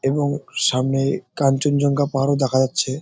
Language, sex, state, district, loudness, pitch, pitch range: Bengali, male, West Bengal, Jalpaiguri, -20 LUFS, 135 Hz, 135-145 Hz